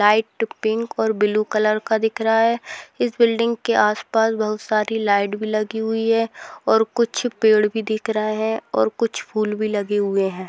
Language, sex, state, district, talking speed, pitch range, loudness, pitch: Hindi, female, Rajasthan, Churu, 185 wpm, 215-225 Hz, -20 LUFS, 220 Hz